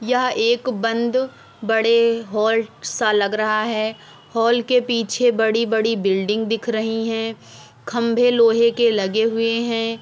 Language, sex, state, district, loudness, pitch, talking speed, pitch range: Hindi, female, Uttar Pradesh, Etah, -19 LUFS, 225 Hz, 145 wpm, 220-235 Hz